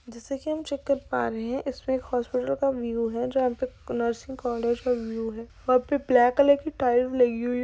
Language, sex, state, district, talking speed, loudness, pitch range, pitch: Hindi, female, Bihar, Madhepura, 235 wpm, -26 LUFS, 235-270 Hz, 250 Hz